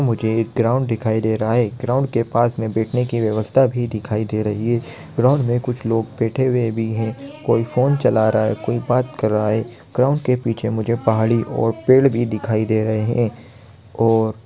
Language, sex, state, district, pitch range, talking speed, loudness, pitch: Hindi, male, Jharkhand, Sahebganj, 110-125 Hz, 205 wpm, -19 LUFS, 115 Hz